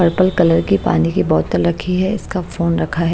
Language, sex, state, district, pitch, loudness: Hindi, female, Bihar, Patna, 165 Hz, -16 LUFS